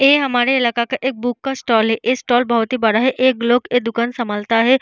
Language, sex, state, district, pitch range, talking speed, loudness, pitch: Hindi, female, Bihar, Vaishali, 235-260 Hz, 260 wpm, -17 LUFS, 245 Hz